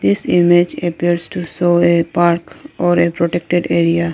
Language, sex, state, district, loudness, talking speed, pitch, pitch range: English, female, Arunachal Pradesh, Lower Dibang Valley, -15 LUFS, 160 wpm, 175 Hz, 170-175 Hz